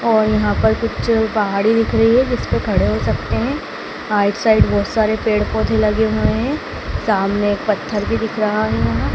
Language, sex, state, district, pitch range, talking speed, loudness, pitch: Hindi, male, Madhya Pradesh, Dhar, 205-225 Hz, 195 wpm, -17 LUFS, 215 Hz